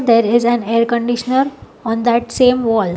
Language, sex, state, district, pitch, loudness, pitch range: English, female, Telangana, Hyderabad, 235 Hz, -15 LUFS, 230-245 Hz